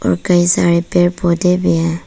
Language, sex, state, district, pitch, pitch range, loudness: Hindi, female, Arunachal Pradesh, Papum Pare, 175 Hz, 170-180 Hz, -14 LUFS